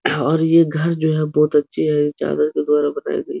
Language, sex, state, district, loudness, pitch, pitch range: Hindi, male, Uttar Pradesh, Etah, -18 LUFS, 155 Hz, 150-165 Hz